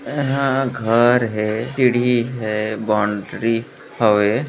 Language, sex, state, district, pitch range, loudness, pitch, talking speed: Hindi, male, Chhattisgarh, Balrampur, 110-125 Hz, -19 LUFS, 115 Hz, 95 wpm